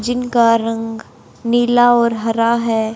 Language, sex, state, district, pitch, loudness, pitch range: Hindi, female, Haryana, Jhajjar, 230 Hz, -15 LUFS, 225-240 Hz